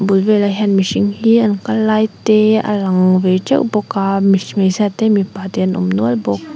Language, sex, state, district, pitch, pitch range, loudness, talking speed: Mizo, female, Mizoram, Aizawl, 200 Hz, 185-215 Hz, -14 LUFS, 210 wpm